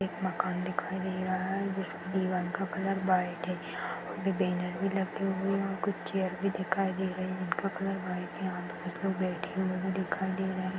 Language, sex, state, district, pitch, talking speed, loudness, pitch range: Hindi, female, Chhattisgarh, Balrampur, 190 Hz, 215 wpm, -33 LUFS, 185-195 Hz